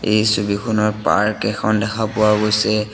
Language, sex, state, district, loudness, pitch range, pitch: Assamese, male, Assam, Sonitpur, -18 LUFS, 105-110 Hz, 105 Hz